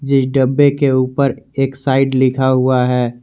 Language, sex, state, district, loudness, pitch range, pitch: Hindi, male, Jharkhand, Garhwa, -15 LUFS, 130-135 Hz, 130 Hz